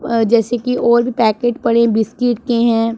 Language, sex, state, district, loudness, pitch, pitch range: Hindi, female, Punjab, Pathankot, -15 LUFS, 235 Hz, 225-240 Hz